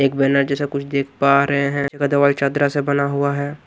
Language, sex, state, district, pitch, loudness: Hindi, male, Odisha, Nuapada, 140 Hz, -18 LUFS